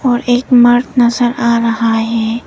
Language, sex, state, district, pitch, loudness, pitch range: Hindi, female, Arunachal Pradesh, Papum Pare, 240 Hz, -12 LUFS, 230-245 Hz